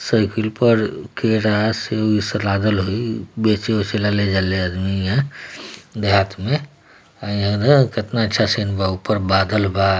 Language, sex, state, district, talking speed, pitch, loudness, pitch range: Bhojpuri, male, Bihar, East Champaran, 125 wpm, 105 Hz, -19 LUFS, 100-110 Hz